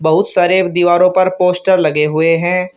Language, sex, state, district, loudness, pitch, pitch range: Hindi, male, Uttar Pradesh, Shamli, -12 LUFS, 180 Hz, 165-185 Hz